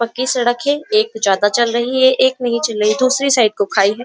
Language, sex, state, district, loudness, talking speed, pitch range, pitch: Hindi, female, Uttar Pradesh, Jyotiba Phule Nagar, -15 LUFS, 265 wpm, 215-255 Hz, 235 Hz